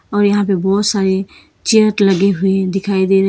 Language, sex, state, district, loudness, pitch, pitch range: Hindi, female, Karnataka, Bangalore, -14 LUFS, 195 Hz, 190-205 Hz